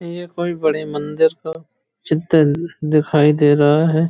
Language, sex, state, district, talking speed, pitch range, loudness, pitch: Hindi, male, Uttar Pradesh, Hamirpur, 145 wpm, 150-165 Hz, -16 LUFS, 155 Hz